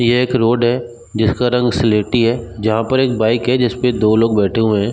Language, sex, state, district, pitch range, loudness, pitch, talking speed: Hindi, male, Chhattisgarh, Bilaspur, 110-125 Hz, -15 LUFS, 120 Hz, 230 wpm